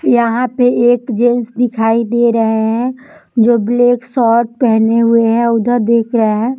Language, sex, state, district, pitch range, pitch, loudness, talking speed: Hindi, female, Bihar, Samastipur, 230-245 Hz, 235 Hz, -13 LUFS, 165 wpm